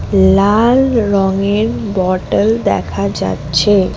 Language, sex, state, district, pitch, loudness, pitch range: Bengali, female, West Bengal, Alipurduar, 195 Hz, -13 LUFS, 145-210 Hz